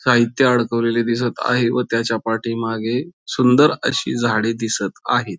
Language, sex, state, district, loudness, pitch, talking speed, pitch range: Marathi, male, Maharashtra, Pune, -19 LUFS, 115 Hz, 135 wpm, 115-125 Hz